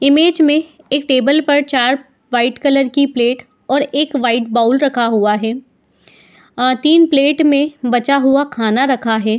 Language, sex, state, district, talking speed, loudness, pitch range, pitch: Hindi, female, Uttar Pradesh, Etah, 180 wpm, -14 LUFS, 245-285 Hz, 270 Hz